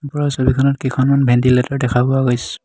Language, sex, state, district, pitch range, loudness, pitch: Assamese, male, Assam, Hailakandi, 125-140 Hz, -16 LUFS, 130 Hz